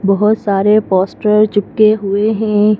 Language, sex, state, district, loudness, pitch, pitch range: Hindi, female, Madhya Pradesh, Bhopal, -13 LUFS, 210 Hz, 200-215 Hz